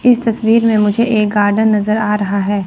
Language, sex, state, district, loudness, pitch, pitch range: Hindi, female, Chandigarh, Chandigarh, -13 LUFS, 215 Hz, 205-225 Hz